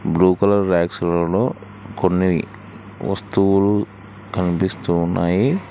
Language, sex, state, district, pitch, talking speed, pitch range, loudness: Telugu, male, Telangana, Hyderabad, 95 Hz, 65 wpm, 85-100 Hz, -19 LUFS